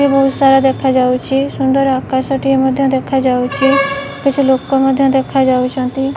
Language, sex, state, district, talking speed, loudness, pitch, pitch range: Odia, female, Odisha, Malkangiri, 125 wpm, -13 LUFS, 270 Hz, 260-275 Hz